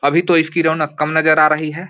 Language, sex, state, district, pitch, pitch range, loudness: Hindi, male, Bihar, Samastipur, 155 Hz, 155-165 Hz, -15 LUFS